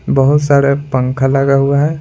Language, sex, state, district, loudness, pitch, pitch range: Hindi, male, Bihar, Patna, -12 LUFS, 140 Hz, 135-145 Hz